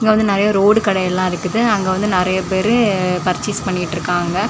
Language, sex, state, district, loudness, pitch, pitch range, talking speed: Tamil, female, Tamil Nadu, Kanyakumari, -16 LUFS, 190 Hz, 180-210 Hz, 175 wpm